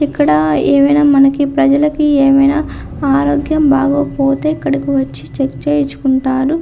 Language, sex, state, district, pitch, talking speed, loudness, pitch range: Telugu, female, Andhra Pradesh, Visakhapatnam, 280 Hz, 100 wpm, -13 LUFS, 265-290 Hz